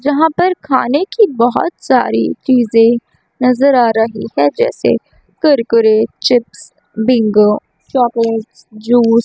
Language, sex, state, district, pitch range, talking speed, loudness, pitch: Hindi, female, Chandigarh, Chandigarh, 225-275 Hz, 115 wpm, -13 LUFS, 235 Hz